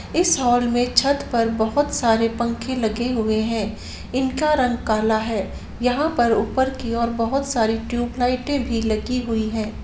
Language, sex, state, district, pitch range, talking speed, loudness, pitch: Hindi, female, Bihar, Saran, 225-260 Hz, 170 wpm, -21 LUFS, 240 Hz